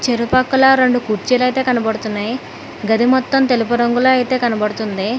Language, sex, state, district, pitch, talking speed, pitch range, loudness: Telugu, female, Telangana, Hyderabad, 245 Hz, 115 wpm, 220-255 Hz, -15 LUFS